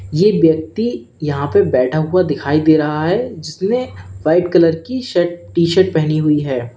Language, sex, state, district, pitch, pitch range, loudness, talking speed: Hindi, male, Uttar Pradesh, Lalitpur, 160 Hz, 150-180 Hz, -16 LUFS, 175 wpm